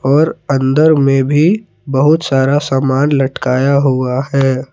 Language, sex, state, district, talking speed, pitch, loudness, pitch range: Hindi, male, Jharkhand, Palamu, 125 wpm, 135 Hz, -13 LUFS, 135-150 Hz